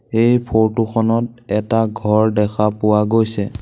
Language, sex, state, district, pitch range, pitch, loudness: Assamese, male, Assam, Sonitpur, 105-115 Hz, 110 Hz, -17 LUFS